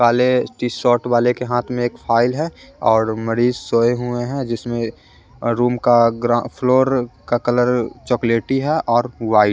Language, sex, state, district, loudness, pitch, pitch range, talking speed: Hindi, male, Bihar, West Champaran, -18 LUFS, 120 Hz, 115-125 Hz, 170 wpm